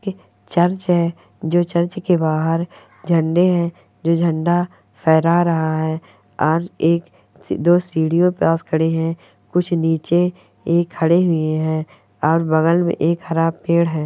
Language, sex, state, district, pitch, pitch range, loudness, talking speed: Hindi, female, Uttar Pradesh, Hamirpur, 170 Hz, 160-175 Hz, -18 LUFS, 150 wpm